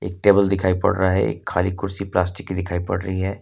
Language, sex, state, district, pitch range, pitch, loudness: Hindi, male, Jharkhand, Ranchi, 90-95 Hz, 95 Hz, -21 LUFS